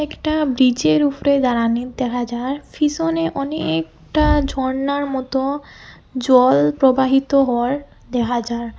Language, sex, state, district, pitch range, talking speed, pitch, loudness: Bengali, female, Assam, Hailakandi, 240-280 Hz, 100 wpm, 260 Hz, -18 LUFS